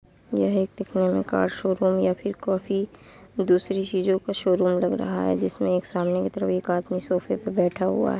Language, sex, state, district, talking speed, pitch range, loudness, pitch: Hindi, female, Uttar Pradesh, Muzaffarnagar, 200 wpm, 180-195 Hz, -24 LUFS, 185 Hz